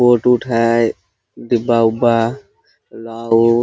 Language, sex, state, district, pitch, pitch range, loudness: Hindi, male, Jharkhand, Sahebganj, 115 Hz, 115-120 Hz, -15 LUFS